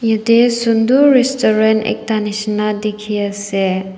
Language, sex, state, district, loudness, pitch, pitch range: Nagamese, female, Nagaland, Dimapur, -15 LUFS, 215 Hz, 210-230 Hz